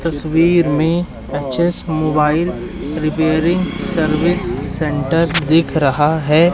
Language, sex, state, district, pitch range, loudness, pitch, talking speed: Hindi, male, Madhya Pradesh, Katni, 150-170 Hz, -16 LUFS, 160 Hz, 90 wpm